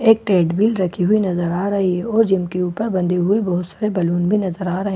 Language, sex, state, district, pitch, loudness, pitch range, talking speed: Hindi, female, Bihar, Katihar, 190 Hz, -18 LUFS, 180-210 Hz, 255 wpm